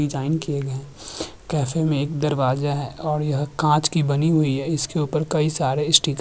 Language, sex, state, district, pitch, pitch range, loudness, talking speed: Hindi, male, Uttarakhand, Tehri Garhwal, 150 Hz, 140-155 Hz, -22 LUFS, 210 wpm